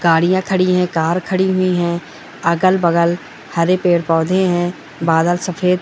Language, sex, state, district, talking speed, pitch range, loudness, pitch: Hindi, female, Bihar, Bhagalpur, 145 wpm, 170-185 Hz, -16 LUFS, 175 Hz